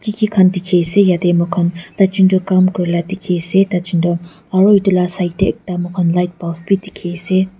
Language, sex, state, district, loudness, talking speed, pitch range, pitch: Nagamese, female, Nagaland, Dimapur, -15 LUFS, 165 wpm, 175-190 Hz, 180 Hz